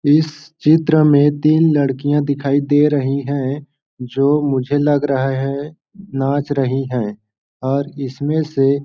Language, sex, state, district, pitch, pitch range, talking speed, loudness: Hindi, male, Chhattisgarh, Balrampur, 145 Hz, 135-150 Hz, 140 wpm, -17 LUFS